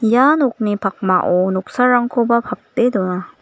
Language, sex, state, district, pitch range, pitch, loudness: Garo, female, Meghalaya, West Garo Hills, 185-245 Hz, 230 Hz, -16 LUFS